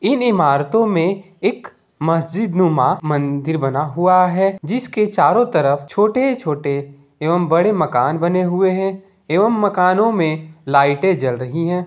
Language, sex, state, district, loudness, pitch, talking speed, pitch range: Hindi, male, Bihar, Gopalganj, -17 LUFS, 175 Hz, 135 wpm, 150-195 Hz